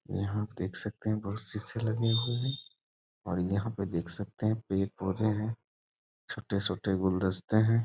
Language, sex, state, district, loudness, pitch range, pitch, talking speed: Hindi, male, Bihar, East Champaran, -31 LUFS, 95-115 Hz, 105 Hz, 160 wpm